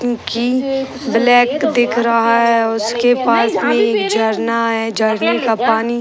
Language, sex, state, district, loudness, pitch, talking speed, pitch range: Hindi, female, Bihar, Sitamarhi, -15 LUFS, 230 Hz, 150 wpm, 225-240 Hz